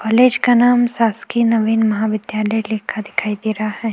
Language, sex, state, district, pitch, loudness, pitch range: Hindi, female, Chhattisgarh, Kabirdham, 220 Hz, -17 LUFS, 215-230 Hz